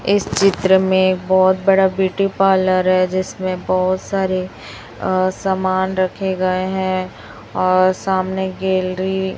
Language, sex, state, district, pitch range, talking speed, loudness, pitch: Hindi, male, Chhattisgarh, Raipur, 185-190 Hz, 130 wpm, -17 LUFS, 185 Hz